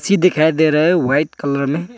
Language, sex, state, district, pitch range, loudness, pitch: Hindi, male, Arunachal Pradesh, Papum Pare, 150-180 Hz, -15 LUFS, 155 Hz